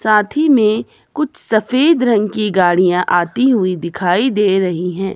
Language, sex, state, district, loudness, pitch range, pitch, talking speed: Hindi, female, Himachal Pradesh, Shimla, -15 LUFS, 180-245 Hz, 210 Hz, 160 wpm